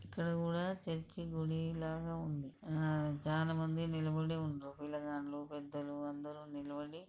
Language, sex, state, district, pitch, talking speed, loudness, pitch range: Telugu, female, Andhra Pradesh, Krishna, 155 Hz, 120 wpm, -40 LUFS, 145-165 Hz